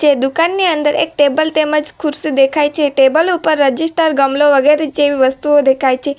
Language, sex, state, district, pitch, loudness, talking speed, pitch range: Gujarati, female, Gujarat, Valsad, 295 Hz, -13 LUFS, 165 wpm, 280-310 Hz